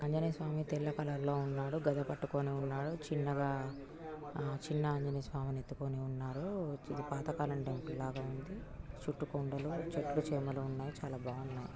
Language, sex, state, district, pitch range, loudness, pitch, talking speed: Telugu, female, Telangana, Nalgonda, 135-150 Hz, -39 LUFS, 140 Hz, 145 wpm